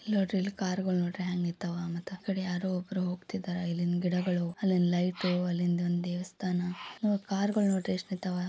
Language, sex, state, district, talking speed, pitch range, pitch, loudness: Kannada, female, Karnataka, Gulbarga, 175 wpm, 175-190 Hz, 180 Hz, -31 LUFS